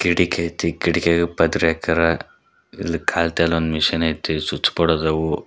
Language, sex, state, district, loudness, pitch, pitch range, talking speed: Kannada, male, Karnataka, Koppal, -20 LUFS, 85 Hz, 80-85 Hz, 130 wpm